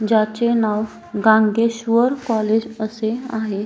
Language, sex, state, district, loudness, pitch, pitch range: Marathi, female, Maharashtra, Solapur, -19 LUFS, 220 Hz, 215-230 Hz